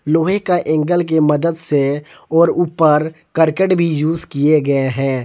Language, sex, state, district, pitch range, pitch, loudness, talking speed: Hindi, male, Jharkhand, Palamu, 150-170 Hz, 160 Hz, -16 LUFS, 160 wpm